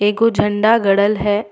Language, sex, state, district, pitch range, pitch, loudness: Surgujia, female, Chhattisgarh, Sarguja, 205-220 Hz, 205 Hz, -15 LUFS